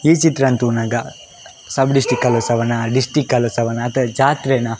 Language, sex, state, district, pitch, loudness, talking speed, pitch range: Tulu, male, Karnataka, Dakshina Kannada, 125 Hz, -17 LUFS, 60 wpm, 115-135 Hz